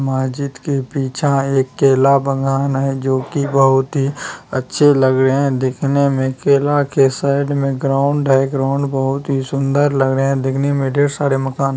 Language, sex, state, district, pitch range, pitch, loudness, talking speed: Hindi, male, Bihar, Kishanganj, 135-140 Hz, 135 Hz, -16 LUFS, 185 wpm